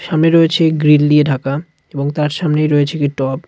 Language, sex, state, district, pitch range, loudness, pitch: Bengali, male, West Bengal, Cooch Behar, 145-160 Hz, -14 LUFS, 150 Hz